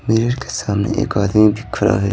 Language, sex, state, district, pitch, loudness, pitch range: Hindi, male, Bihar, Patna, 105 Hz, -17 LUFS, 100-120 Hz